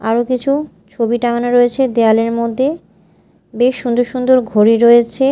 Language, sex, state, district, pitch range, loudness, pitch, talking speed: Bengali, female, Odisha, Malkangiri, 230-255 Hz, -14 LUFS, 240 Hz, 135 wpm